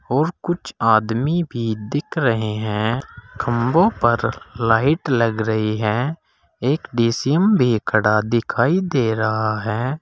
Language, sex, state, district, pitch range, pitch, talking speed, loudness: Hindi, male, Uttar Pradesh, Saharanpur, 110-145 Hz, 120 Hz, 125 wpm, -19 LUFS